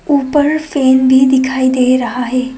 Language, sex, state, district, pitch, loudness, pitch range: Hindi, female, Assam, Kamrup Metropolitan, 260 Hz, -12 LUFS, 255-275 Hz